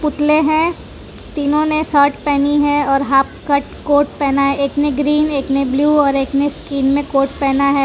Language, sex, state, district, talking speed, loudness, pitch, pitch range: Hindi, female, Gujarat, Valsad, 185 wpm, -15 LUFS, 285 Hz, 275-295 Hz